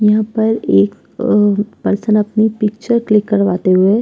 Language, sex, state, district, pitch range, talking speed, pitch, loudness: Hindi, female, Uttar Pradesh, Jyotiba Phule Nagar, 205-220 Hz, 165 wpm, 210 Hz, -14 LUFS